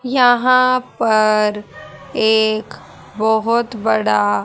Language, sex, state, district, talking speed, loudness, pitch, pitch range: Hindi, female, Haryana, Rohtak, 65 wpm, -15 LUFS, 220 Hz, 210-245 Hz